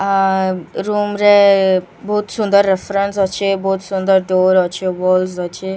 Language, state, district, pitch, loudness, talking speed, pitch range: Sambalpuri, Odisha, Sambalpur, 195 Hz, -15 LUFS, 135 wpm, 185-200 Hz